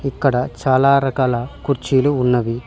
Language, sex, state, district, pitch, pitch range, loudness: Telugu, male, Telangana, Mahabubabad, 130 Hz, 125-135 Hz, -17 LUFS